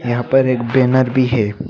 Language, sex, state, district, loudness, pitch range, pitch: Hindi, male, Assam, Hailakandi, -15 LUFS, 120-130 Hz, 125 Hz